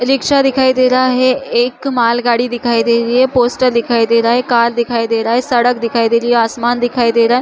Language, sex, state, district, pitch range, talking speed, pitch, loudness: Chhattisgarhi, female, Chhattisgarh, Rajnandgaon, 235-255 Hz, 260 wpm, 240 Hz, -13 LUFS